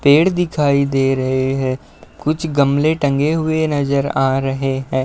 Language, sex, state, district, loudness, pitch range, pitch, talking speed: Hindi, male, Uttar Pradesh, Budaun, -17 LUFS, 135-155 Hz, 140 Hz, 155 wpm